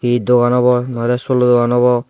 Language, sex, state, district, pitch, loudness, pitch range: Chakma, male, Tripura, Dhalai, 125 Hz, -14 LUFS, 120-125 Hz